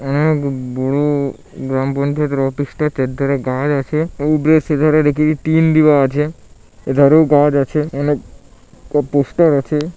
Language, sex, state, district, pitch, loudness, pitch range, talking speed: Bengali, male, West Bengal, Paschim Medinipur, 145 Hz, -15 LUFS, 140-155 Hz, 125 wpm